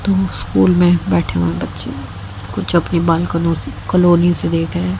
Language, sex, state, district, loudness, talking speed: Hindi, female, Haryana, Jhajjar, -16 LUFS, 155 wpm